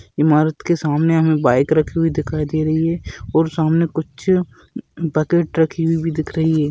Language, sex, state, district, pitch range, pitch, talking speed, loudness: Hindi, female, Rajasthan, Nagaur, 155-165 Hz, 160 Hz, 190 wpm, -18 LUFS